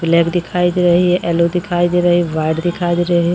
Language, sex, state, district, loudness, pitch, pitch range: Hindi, female, Jharkhand, Sahebganj, -15 LUFS, 175 Hz, 170-175 Hz